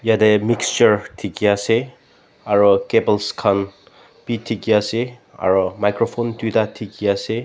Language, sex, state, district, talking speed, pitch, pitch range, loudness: Nagamese, male, Nagaland, Dimapur, 120 wpm, 105 Hz, 100-115 Hz, -18 LUFS